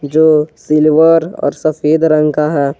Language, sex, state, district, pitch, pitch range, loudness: Hindi, male, Jharkhand, Garhwa, 155 Hz, 150-160 Hz, -12 LUFS